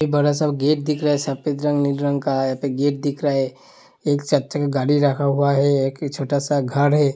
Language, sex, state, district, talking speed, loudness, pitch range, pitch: Hindi, male, Uttar Pradesh, Hamirpur, 250 wpm, -20 LUFS, 140-145 Hz, 145 Hz